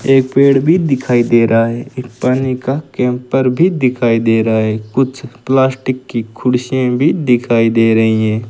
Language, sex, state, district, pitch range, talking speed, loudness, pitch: Hindi, male, Rajasthan, Bikaner, 115-135 Hz, 175 wpm, -13 LUFS, 125 Hz